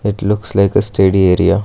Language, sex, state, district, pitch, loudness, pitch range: English, male, Karnataka, Bangalore, 100 Hz, -13 LUFS, 95-105 Hz